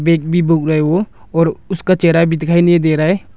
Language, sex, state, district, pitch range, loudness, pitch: Hindi, male, Arunachal Pradesh, Longding, 160-175 Hz, -14 LUFS, 165 Hz